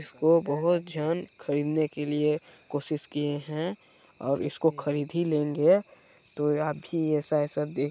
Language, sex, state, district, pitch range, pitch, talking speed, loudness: Hindi, female, Chhattisgarh, Balrampur, 145-165 Hz, 150 Hz, 150 wpm, -28 LUFS